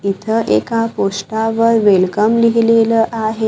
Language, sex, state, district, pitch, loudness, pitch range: Marathi, female, Maharashtra, Gondia, 225 Hz, -14 LUFS, 200-230 Hz